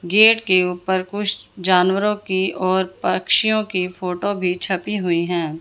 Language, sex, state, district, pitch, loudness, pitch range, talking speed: Hindi, female, Haryana, Jhajjar, 185 Hz, -19 LUFS, 180-205 Hz, 150 wpm